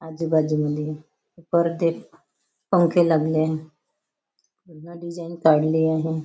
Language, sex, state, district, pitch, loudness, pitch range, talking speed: Marathi, female, Maharashtra, Nagpur, 160 Hz, -22 LUFS, 155-170 Hz, 85 wpm